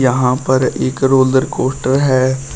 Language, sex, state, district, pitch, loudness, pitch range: Hindi, male, Uttar Pradesh, Shamli, 130 Hz, -14 LUFS, 130-135 Hz